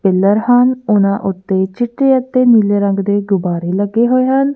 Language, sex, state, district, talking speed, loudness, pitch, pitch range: Punjabi, female, Punjab, Kapurthala, 170 wpm, -13 LUFS, 205 Hz, 195-250 Hz